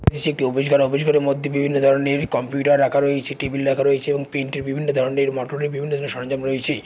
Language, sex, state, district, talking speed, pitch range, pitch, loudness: Bengali, male, West Bengal, Jalpaiguri, 230 wpm, 135-145 Hz, 140 Hz, -20 LUFS